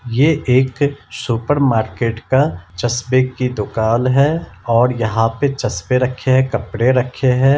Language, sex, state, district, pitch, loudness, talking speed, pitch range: Hindi, male, Bihar, Gaya, 125 Hz, -17 LUFS, 140 wpm, 115-135 Hz